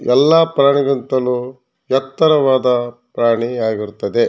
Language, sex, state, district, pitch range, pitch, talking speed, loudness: Kannada, male, Karnataka, Shimoga, 120-140 Hz, 130 Hz, 70 wpm, -15 LUFS